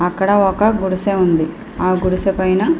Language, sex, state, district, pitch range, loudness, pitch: Telugu, female, Andhra Pradesh, Srikakulam, 185-200 Hz, -16 LUFS, 190 Hz